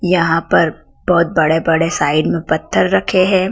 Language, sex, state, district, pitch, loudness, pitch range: Hindi, female, Madhya Pradesh, Dhar, 165 Hz, -14 LUFS, 160-185 Hz